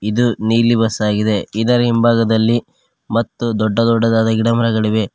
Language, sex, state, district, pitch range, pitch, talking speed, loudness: Kannada, male, Karnataka, Koppal, 110-115 Hz, 115 Hz, 130 wpm, -15 LUFS